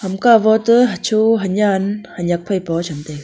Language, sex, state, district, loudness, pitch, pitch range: Wancho, female, Arunachal Pradesh, Longding, -16 LUFS, 200 Hz, 175-220 Hz